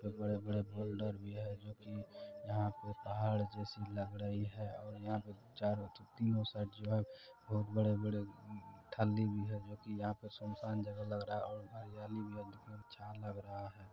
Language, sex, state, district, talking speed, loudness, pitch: Maithili, male, Bihar, Supaul, 200 wpm, -42 LUFS, 105 Hz